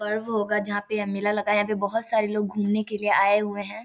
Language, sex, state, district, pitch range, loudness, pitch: Maithili, female, Bihar, Samastipur, 205-215 Hz, -24 LUFS, 210 Hz